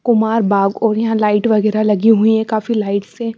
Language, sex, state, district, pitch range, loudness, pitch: Hindi, female, Bihar, West Champaran, 210-225 Hz, -15 LUFS, 220 Hz